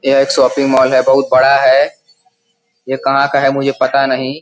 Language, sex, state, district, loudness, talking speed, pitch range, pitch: Hindi, male, Uttar Pradesh, Gorakhpur, -12 LUFS, 205 wpm, 135-140 Hz, 135 Hz